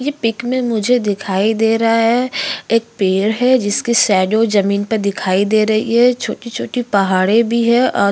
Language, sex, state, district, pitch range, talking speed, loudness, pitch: Hindi, female, Uttarakhand, Tehri Garhwal, 200-235 Hz, 190 wpm, -15 LUFS, 225 Hz